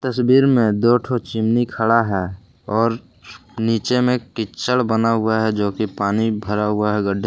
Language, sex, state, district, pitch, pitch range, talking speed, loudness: Hindi, male, Jharkhand, Palamu, 115 Hz, 105-120 Hz, 175 wpm, -19 LUFS